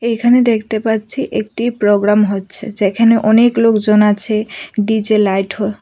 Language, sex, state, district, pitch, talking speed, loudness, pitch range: Bengali, female, Tripura, West Tripura, 215 Hz, 135 wpm, -14 LUFS, 210-230 Hz